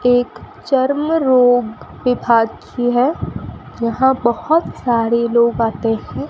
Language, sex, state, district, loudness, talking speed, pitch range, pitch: Hindi, female, Rajasthan, Bikaner, -16 LUFS, 115 wpm, 235-260 Hz, 245 Hz